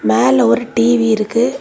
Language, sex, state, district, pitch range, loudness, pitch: Tamil, female, Tamil Nadu, Kanyakumari, 230-245 Hz, -14 LUFS, 235 Hz